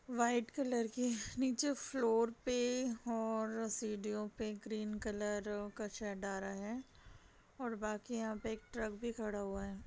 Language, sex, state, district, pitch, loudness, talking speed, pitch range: Hindi, female, Uttar Pradesh, Jalaun, 225 Hz, -40 LUFS, 145 wpm, 210-240 Hz